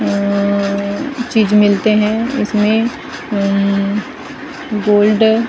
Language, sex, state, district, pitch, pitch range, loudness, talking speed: Hindi, female, Maharashtra, Gondia, 210 Hz, 200-230 Hz, -15 LUFS, 85 wpm